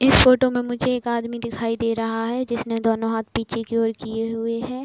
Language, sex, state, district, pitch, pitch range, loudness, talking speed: Hindi, female, Uttar Pradesh, Budaun, 230 Hz, 225-240 Hz, -21 LUFS, 235 wpm